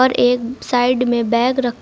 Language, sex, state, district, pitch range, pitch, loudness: Hindi, male, Uttar Pradesh, Lucknow, 240-255 Hz, 245 Hz, -17 LUFS